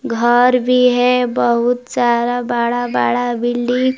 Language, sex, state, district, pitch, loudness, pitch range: Hindi, female, Jharkhand, Palamu, 245 Hz, -15 LUFS, 240-250 Hz